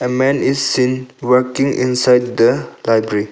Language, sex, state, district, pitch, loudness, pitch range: English, male, Arunachal Pradesh, Longding, 125 Hz, -15 LUFS, 125-130 Hz